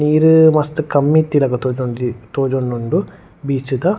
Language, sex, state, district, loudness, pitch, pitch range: Tulu, male, Karnataka, Dakshina Kannada, -16 LUFS, 140 Hz, 130-155 Hz